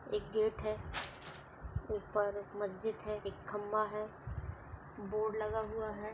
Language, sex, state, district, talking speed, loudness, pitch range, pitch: Hindi, female, Chhattisgarh, Bastar, 125 wpm, -39 LUFS, 205-220 Hz, 215 Hz